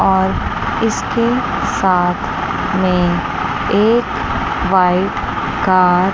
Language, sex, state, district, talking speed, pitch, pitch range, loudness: Hindi, female, Chandigarh, Chandigarh, 80 wpm, 190 Hz, 180-205 Hz, -16 LUFS